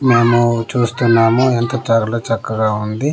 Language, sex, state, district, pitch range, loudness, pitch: Telugu, male, Andhra Pradesh, Manyam, 115-120 Hz, -15 LUFS, 115 Hz